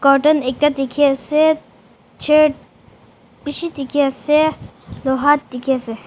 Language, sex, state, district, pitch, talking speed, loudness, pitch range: Nagamese, female, Nagaland, Dimapur, 290 Hz, 100 wpm, -17 LUFS, 270-300 Hz